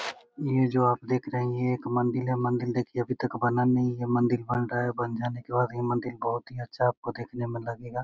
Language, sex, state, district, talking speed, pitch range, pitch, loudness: Maithili, male, Bihar, Begusarai, 245 wpm, 120-125 Hz, 120 Hz, -28 LUFS